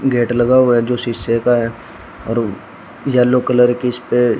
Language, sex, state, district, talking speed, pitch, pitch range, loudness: Hindi, male, Haryana, Charkhi Dadri, 190 wpm, 120 Hz, 120-125 Hz, -15 LUFS